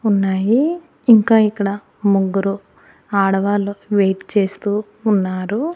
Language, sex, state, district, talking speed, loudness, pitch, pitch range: Telugu, female, Andhra Pradesh, Annamaya, 85 wpm, -17 LUFS, 205 Hz, 195-215 Hz